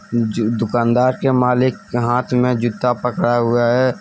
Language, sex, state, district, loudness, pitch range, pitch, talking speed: Hindi, male, Jharkhand, Deoghar, -17 LUFS, 120-125 Hz, 120 Hz, 150 wpm